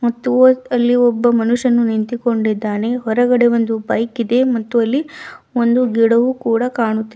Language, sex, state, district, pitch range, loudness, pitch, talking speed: Kannada, female, Karnataka, Bidar, 230-245 Hz, -16 LUFS, 235 Hz, 125 wpm